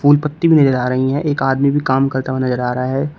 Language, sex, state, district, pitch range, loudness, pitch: Hindi, male, Uttar Pradesh, Shamli, 130-145 Hz, -16 LUFS, 135 Hz